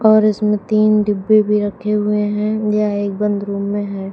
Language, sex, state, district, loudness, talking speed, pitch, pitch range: Hindi, female, Uttar Pradesh, Shamli, -17 LUFS, 205 wpm, 210 Hz, 205-215 Hz